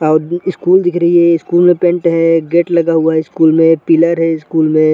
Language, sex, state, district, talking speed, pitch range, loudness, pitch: Hindi, male, Chhattisgarh, Sarguja, 240 wpm, 160-175 Hz, -11 LUFS, 165 Hz